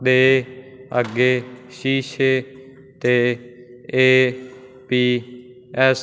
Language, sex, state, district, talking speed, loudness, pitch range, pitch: Punjabi, male, Punjab, Fazilka, 60 wpm, -19 LUFS, 125-130 Hz, 130 Hz